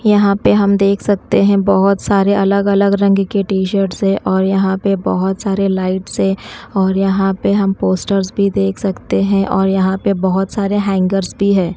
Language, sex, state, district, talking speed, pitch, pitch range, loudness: Hindi, female, Chhattisgarh, Raipur, 200 wpm, 195 Hz, 190-200 Hz, -15 LUFS